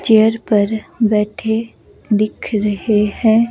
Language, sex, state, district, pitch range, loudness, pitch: Hindi, female, Himachal Pradesh, Shimla, 210-220 Hz, -16 LUFS, 215 Hz